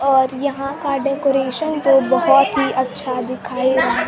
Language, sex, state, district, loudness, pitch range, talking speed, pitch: Hindi, female, Bihar, Kaimur, -17 LUFS, 260-280 Hz, 145 wpm, 270 Hz